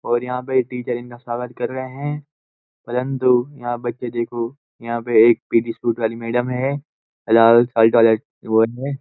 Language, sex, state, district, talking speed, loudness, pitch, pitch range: Hindi, male, Uttarakhand, Uttarkashi, 155 wpm, -19 LUFS, 120 Hz, 115-125 Hz